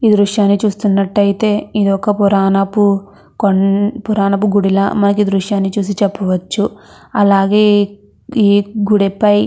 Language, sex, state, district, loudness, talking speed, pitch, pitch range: Telugu, female, Andhra Pradesh, Krishna, -14 LUFS, 115 wpm, 200 Hz, 195-210 Hz